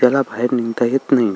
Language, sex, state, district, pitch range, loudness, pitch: Marathi, male, Maharashtra, Solapur, 120-135 Hz, -18 LUFS, 125 Hz